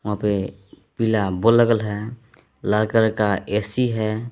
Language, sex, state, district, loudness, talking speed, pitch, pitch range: Hindi, male, Jharkhand, Palamu, -21 LUFS, 165 wpm, 110 Hz, 105-115 Hz